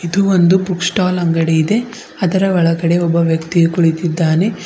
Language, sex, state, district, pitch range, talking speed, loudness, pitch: Kannada, female, Karnataka, Bidar, 165-185 Hz, 130 wpm, -14 LUFS, 175 Hz